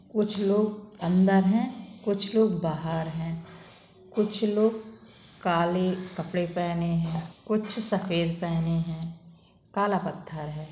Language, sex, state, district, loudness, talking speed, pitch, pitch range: Bundeli, female, Uttar Pradesh, Budaun, -27 LUFS, 120 wpm, 185 Hz, 165-210 Hz